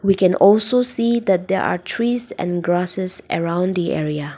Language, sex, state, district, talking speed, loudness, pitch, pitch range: English, female, Nagaland, Dimapur, 180 wpm, -19 LUFS, 185 Hz, 175-220 Hz